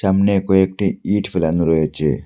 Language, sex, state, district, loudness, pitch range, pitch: Bengali, male, Assam, Hailakandi, -17 LUFS, 80-100 Hz, 95 Hz